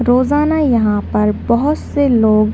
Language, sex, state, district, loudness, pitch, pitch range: Hindi, female, Uttar Pradesh, Deoria, -14 LUFS, 245 Hz, 215-285 Hz